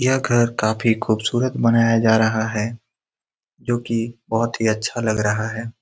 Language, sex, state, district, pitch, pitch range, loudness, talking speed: Hindi, male, Bihar, Lakhisarai, 115 Hz, 110-120 Hz, -20 LUFS, 155 wpm